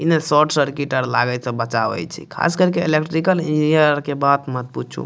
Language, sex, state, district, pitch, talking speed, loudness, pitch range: Maithili, male, Bihar, Madhepura, 145 Hz, 190 wpm, -18 LUFS, 125-155 Hz